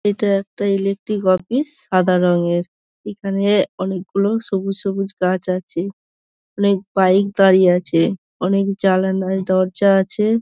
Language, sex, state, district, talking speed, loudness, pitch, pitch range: Bengali, female, West Bengal, Dakshin Dinajpur, 120 wpm, -18 LUFS, 195 Hz, 185-200 Hz